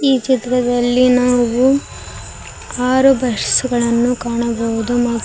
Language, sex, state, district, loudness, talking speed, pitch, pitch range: Kannada, female, Karnataka, Koppal, -15 LUFS, 90 wpm, 245 Hz, 235-255 Hz